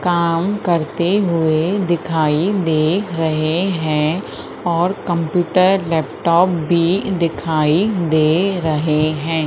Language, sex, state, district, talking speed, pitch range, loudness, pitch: Hindi, female, Madhya Pradesh, Umaria, 95 wpm, 160-180 Hz, -17 LUFS, 170 Hz